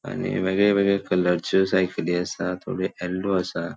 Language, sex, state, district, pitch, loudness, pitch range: Konkani, male, Goa, North and South Goa, 90 Hz, -23 LUFS, 90-95 Hz